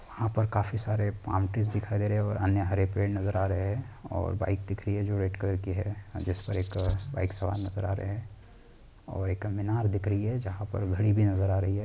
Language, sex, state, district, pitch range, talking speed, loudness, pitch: Hindi, male, Bihar, Jamui, 95-105 Hz, 255 wpm, -30 LUFS, 100 Hz